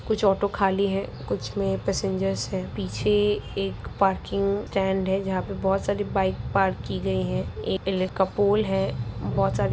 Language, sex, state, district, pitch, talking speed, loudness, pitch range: Hindi, female, Bihar, Jamui, 195 Hz, 195 wpm, -25 LUFS, 120-200 Hz